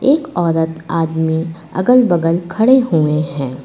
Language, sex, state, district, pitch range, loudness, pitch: Hindi, female, Uttar Pradesh, Lucknow, 160-185 Hz, -15 LUFS, 165 Hz